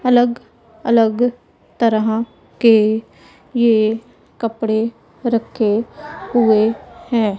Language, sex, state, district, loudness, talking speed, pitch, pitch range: Hindi, female, Punjab, Pathankot, -17 LUFS, 75 wpm, 230 Hz, 220-240 Hz